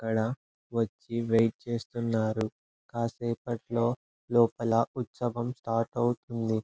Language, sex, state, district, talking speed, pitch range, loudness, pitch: Telugu, male, Andhra Pradesh, Anantapur, 80 wpm, 115-120 Hz, -30 LUFS, 115 Hz